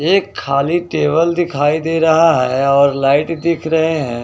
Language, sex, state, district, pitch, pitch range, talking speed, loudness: Hindi, male, Bihar, West Champaran, 160 Hz, 140-165 Hz, 170 wpm, -14 LUFS